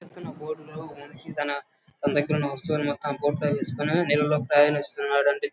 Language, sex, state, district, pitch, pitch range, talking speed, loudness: Telugu, male, Andhra Pradesh, Guntur, 145 Hz, 145-155 Hz, 140 wpm, -25 LUFS